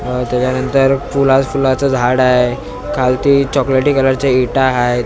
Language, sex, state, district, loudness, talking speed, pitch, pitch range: Marathi, male, Maharashtra, Mumbai Suburban, -13 LUFS, 130 wpm, 130 Hz, 125-135 Hz